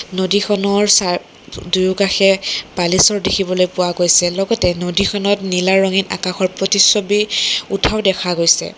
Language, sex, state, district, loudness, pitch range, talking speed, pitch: Assamese, female, Assam, Kamrup Metropolitan, -15 LUFS, 180-200 Hz, 115 wpm, 195 Hz